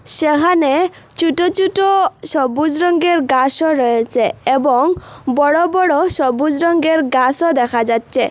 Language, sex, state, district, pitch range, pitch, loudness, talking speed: Bengali, female, Assam, Hailakandi, 265-350 Hz, 315 Hz, -14 LUFS, 110 wpm